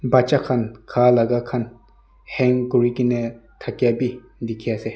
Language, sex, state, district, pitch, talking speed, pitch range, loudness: Nagamese, male, Nagaland, Dimapur, 120 Hz, 135 wpm, 115-125 Hz, -20 LUFS